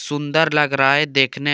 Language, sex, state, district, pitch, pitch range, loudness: Hindi, male, Jharkhand, Deoghar, 145 Hz, 140-150 Hz, -17 LUFS